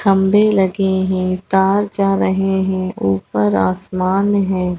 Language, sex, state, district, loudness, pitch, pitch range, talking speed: Hindi, female, Chhattisgarh, Raigarh, -16 LUFS, 190 Hz, 185-195 Hz, 125 wpm